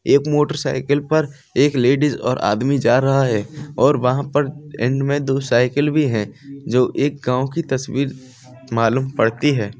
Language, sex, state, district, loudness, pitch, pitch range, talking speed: Hindi, male, Bihar, Samastipur, -18 LUFS, 135 Hz, 125-145 Hz, 165 wpm